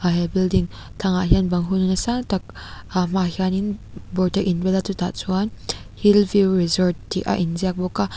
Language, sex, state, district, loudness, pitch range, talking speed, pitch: Mizo, female, Mizoram, Aizawl, -21 LUFS, 180-195 Hz, 170 wpm, 185 Hz